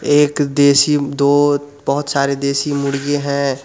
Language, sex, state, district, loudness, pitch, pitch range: Hindi, male, Bihar, Muzaffarpur, -15 LUFS, 140 Hz, 140-145 Hz